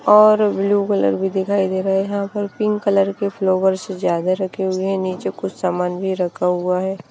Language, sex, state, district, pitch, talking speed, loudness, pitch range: Hindi, female, Bihar, Kaimur, 190 Hz, 210 wpm, -19 LUFS, 185-200 Hz